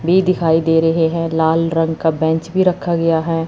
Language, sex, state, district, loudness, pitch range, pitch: Hindi, female, Chandigarh, Chandigarh, -16 LUFS, 160-165 Hz, 165 Hz